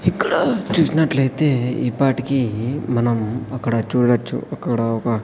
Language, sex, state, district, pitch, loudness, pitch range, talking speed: Telugu, male, Andhra Pradesh, Sri Satya Sai, 125 Hz, -19 LUFS, 115-135 Hz, 90 wpm